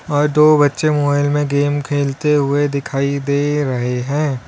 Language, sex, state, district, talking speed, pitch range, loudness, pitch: Hindi, male, Uttar Pradesh, Lalitpur, 160 wpm, 140-145 Hz, -16 LUFS, 145 Hz